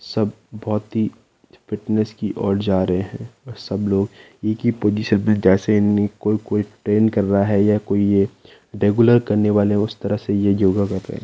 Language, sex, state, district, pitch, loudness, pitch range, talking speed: Hindi, male, Rajasthan, Nagaur, 105 Hz, -19 LUFS, 100-110 Hz, 190 wpm